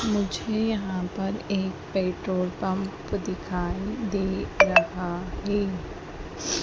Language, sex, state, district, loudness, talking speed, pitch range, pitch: Hindi, female, Madhya Pradesh, Dhar, -27 LUFS, 90 wpm, 185-200 Hz, 190 Hz